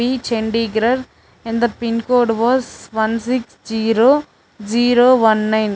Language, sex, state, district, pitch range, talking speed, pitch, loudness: English, female, Chandigarh, Chandigarh, 225-245 Hz, 115 wpm, 230 Hz, -17 LUFS